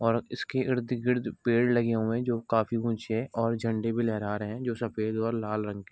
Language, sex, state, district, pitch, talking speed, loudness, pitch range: Hindi, male, Bihar, Gopalganj, 115 Hz, 245 wpm, -29 LUFS, 110-120 Hz